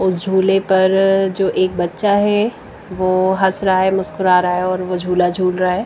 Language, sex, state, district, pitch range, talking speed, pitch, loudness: Hindi, female, Bihar, West Champaran, 180-195 Hz, 195 wpm, 190 Hz, -16 LUFS